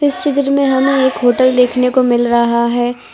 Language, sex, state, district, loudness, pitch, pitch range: Hindi, female, Gujarat, Valsad, -13 LUFS, 250 Hz, 240-275 Hz